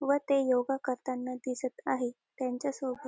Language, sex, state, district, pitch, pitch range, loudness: Marathi, female, Maharashtra, Dhule, 255 Hz, 250-270 Hz, -32 LUFS